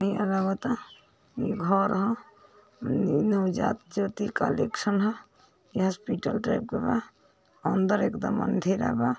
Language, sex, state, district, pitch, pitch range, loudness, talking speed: Hindi, female, Uttar Pradesh, Ghazipur, 205 Hz, 190-220 Hz, -28 LUFS, 110 wpm